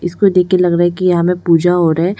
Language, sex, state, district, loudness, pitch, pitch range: Hindi, female, Arunachal Pradesh, Lower Dibang Valley, -13 LUFS, 175 Hz, 175-180 Hz